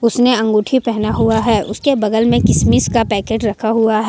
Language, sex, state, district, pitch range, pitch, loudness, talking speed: Hindi, female, Jharkhand, Ranchi, 215-230 Hz, 225 Hz, -14 LUFS, 190 wpm